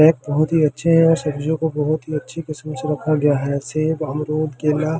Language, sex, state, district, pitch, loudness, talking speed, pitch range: Hindi, male, Delhi, New Delhi, 155 Hz, -19 LUFS, 240 wpm, 150-160 Hz